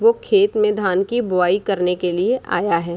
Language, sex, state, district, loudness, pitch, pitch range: Hindi, female, Bihar, Sitamarhi, -18 LUFS, 200 Hz, 180-245 Hz